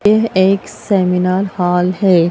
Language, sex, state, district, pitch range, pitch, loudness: Hindi, female, Bihar, Vaishali, 180-200 Hz, 190 Hz, -14 LUFS